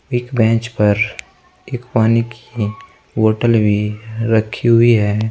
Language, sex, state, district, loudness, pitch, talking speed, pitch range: Hindi, male, Uttar Pradesh, Saharanpur, -16 LUFS, 115 Hz, 125 wpm, 110-120 Hz